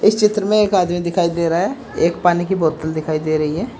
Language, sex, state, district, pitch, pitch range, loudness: Hindi, male, Uttar Pradesh, Saharanpur, 175 Hz, 160-190 Hz, -18 LUFS